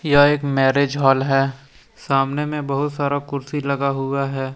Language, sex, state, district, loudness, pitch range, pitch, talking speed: Hindi, male, Jharkhand, Deoghar, -20 LUFS, 135-145 Hz, 140 Hz, 170 wpm